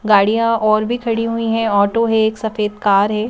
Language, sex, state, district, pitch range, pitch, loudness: Hindi, female, Madhya Pradesh, Bhopal, 210-230 Hz, 220 Hz, -16 LUFS